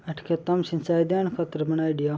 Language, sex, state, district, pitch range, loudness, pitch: Marwari, male, Rajasthan, Churu, 155-175 Hz, -26 LUFS, 165 Hz